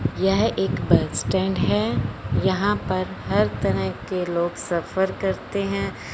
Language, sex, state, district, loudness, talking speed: Hindi, male, Punjab, Fazilka, -23 LUFS, 135 wpm